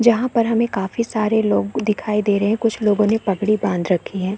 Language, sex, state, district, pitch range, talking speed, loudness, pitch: Hindi, female, Chhattisgarh, Korba, 195-225 Hz, 220 wpm, -19 LUFS, 210 Hz